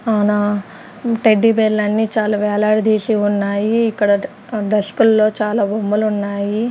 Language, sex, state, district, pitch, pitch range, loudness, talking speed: Telugu, female, Andhra Pradesh, Sri Satya Sai, 215 Hz, 205-220 Hz, -16 LUFS, 115 wpm